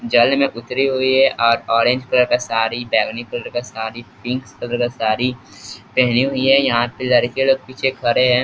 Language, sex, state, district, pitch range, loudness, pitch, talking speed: Hindi, male, Bihar, East Champaran, 120-130 Hz, -18 LUFS, 125 Hz, 190 wpm